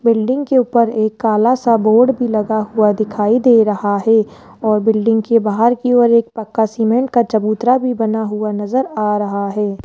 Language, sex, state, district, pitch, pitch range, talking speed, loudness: Hindi, male, Rajasthan, Jaipur, 220 Hz, 215-240 Hz, 195 wpm, -15 LUFS